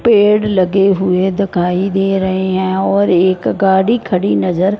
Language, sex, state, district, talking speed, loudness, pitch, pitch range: Hindi, male, Punjab, Fazilka, 150 wpm, -13 LUFS, 190 Hz, 185-200 Hz